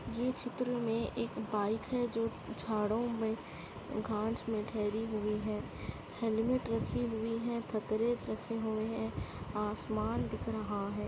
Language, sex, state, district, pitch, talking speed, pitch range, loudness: Hindi, female, Uttarakhand, Uttarkashi, 220 Hz, 130 wpm, 210-230 Hz, -36 LUFS